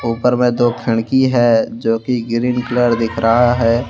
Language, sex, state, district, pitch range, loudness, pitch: Hindi, male, Jharkhand, Deoghar, 115-125 Hz, -15 LUFS, 120 Hz